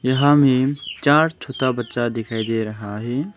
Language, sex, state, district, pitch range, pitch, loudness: Hindi, male, Arunachal Pradesh, Longding, 115-140 Hz, 130 Hz, -20 LUFS